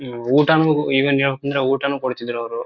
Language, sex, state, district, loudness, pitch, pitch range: Kannada, male, Karnataka, Shimoga, -18 LUFS, 135 Hz, 130-140 Hz